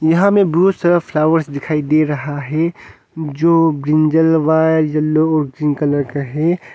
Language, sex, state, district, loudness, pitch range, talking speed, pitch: Hindi, male, Arunachal Pradesh, Longding, -15 LUFS, 150-165 Hz, 150 wpm, 155 Hz